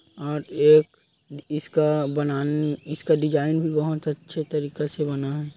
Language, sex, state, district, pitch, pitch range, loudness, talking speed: Hindi, male, Chhattisgarh, Korba, 150 Hz, 145-155 Hz, -23 LUFS, 130 wpm